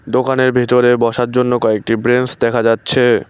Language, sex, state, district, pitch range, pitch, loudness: Bengali, male, West Bengal, Cooch Behar, 115-125 Hz, 120 Hz, -14 LUFS